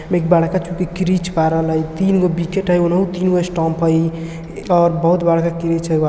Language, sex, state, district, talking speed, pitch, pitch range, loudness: Hindi, male, Bihar, East Champaran, 170 wpm, 170 Hz, 165-180 Hz, -17 LUFS